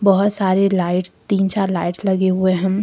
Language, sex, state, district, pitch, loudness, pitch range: Hindi, female, Jharkhand, Deoghar, 190 Hz, -18 LUFS, 185-195 Hz